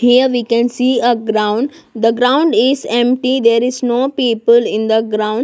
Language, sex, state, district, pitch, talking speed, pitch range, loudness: English, female, Maharashtra, Gondia, 240 Hz, 185 wpm, 230-255 Hz, -14 LUFS